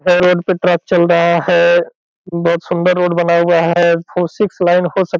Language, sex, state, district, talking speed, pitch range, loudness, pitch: Hindi, male, Bihar, Purnia, 220 wpm, 170-180 Hz, -13 LUFS, 175 Hz